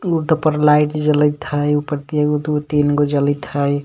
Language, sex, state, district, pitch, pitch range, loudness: Magahi, male, Jharkhand, Palamu, 150 Hz, 145-150 Hz, -17 LUFS